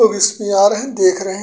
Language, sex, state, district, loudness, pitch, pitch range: Bhojpuri, male, Uttar Pradesh, Gorakhpur, -15 LUFS, 200 Hz, 195-215 Hz